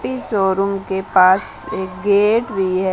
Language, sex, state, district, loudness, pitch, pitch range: Hindi, female, Rajasthan, Bikaner, -17 LUFS, 190 Hz, 185-200 Hz